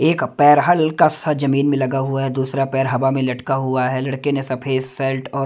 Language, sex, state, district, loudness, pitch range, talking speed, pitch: Hindi, male, Delhi, New Delhi, -18 LUFS, 130-140 Hz, 230 wpm, 135 Hz